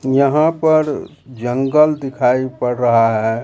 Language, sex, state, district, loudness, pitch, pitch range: Hindi, male, Bihar, Katihar, -15 LUFS, 130 Hz, 125-150 Hz